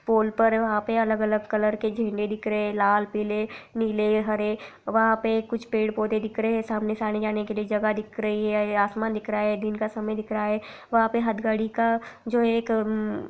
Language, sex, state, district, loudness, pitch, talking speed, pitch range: Hindi, female, Bihar, Sitamarhi, -25 LUFS, 215 Hz, 220 wpm, 215-225 Hz